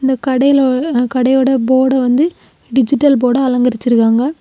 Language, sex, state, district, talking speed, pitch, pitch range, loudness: Tamil, female, Tamil Nadu, Kanyakumari, 120 wpm, 260 Hz, 250-270 Hz, -13 LUFS